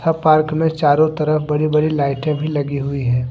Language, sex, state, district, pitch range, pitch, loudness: Hindi, male, Jharkhand, Deoghar, 140-155 Hz, 150 Hz, -17 LUFS